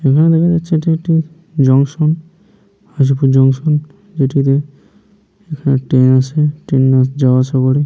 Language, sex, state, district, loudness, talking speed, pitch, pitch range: Bengali, male, West Bengal, Paschim Medinipur, -13 LUFS, 105 wpm, 150 Hz, 135-165 Hz